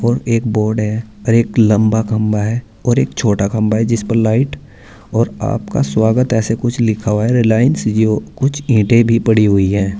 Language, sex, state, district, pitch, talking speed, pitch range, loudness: Hindi, male, Uttar Pradesh, Saharanpur, 110 Hz, 200 wpm, 105-115 Hz, -15 LUFS